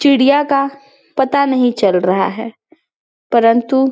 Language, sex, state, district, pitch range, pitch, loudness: Hindi, female, Chhattisgarh, Balrampur, 230-275 Hz, 265 Hz, -14 LUFS